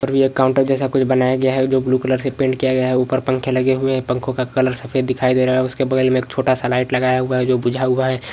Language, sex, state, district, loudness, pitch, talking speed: Hindi, male, Uttarakhand, Uttarkashi, -18 LUFS, 130 Hz, 300 wpm